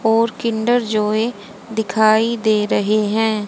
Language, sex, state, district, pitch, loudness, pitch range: Hindi, female, Haryana, Charkhi Dadri, 220 Hz, -17 LUFS, 215-225 Hz